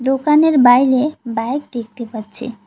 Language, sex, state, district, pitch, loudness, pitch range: Bengali, female, West Bengal, Cooch Behar, 250 Hz, -14 LUFS, 235-270 Hz